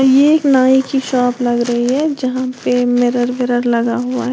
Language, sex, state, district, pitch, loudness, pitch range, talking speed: Hindi, female, Uttar Pradesh, Lalitpur, 250 Hz, -14 LUFS, 245-265 Hz, 210 wpm